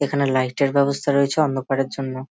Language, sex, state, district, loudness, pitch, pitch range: Bengali, male, West Bengal, Malda, -21 LUFS, 140 Hz, 130-140 Hz